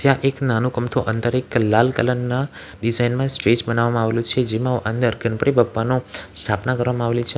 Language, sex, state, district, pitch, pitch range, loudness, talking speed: Gujarati, male, Gujarat, Valsad, 120 Hz, 115-125 Hz, -20 LUFS, 185 wpm